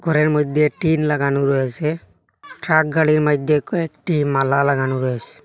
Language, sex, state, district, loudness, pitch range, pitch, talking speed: Bengali, male, Assam, Hailakandi, -18 LUFS, 140-155 Hz, 150 Hz, 130 wpm